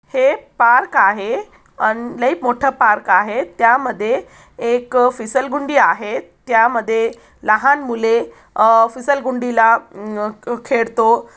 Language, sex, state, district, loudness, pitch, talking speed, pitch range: Marathi, female, Maharashtra, Aurangabad, -16 LUFS, 235 Hz, 100 wpm, 225-260 Hz